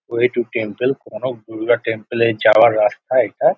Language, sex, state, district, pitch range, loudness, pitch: Bengali, male, West Bengal, Jhargram, 115-120 Hz, -17 LUFS, 115 Hz